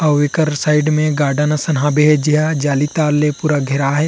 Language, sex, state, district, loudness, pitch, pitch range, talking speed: Chhattisgarhi, male, Chhattisgarh, Rajnandgaon, -15 LUFS, 150 Hz, 145-155 Hz, 205 wpm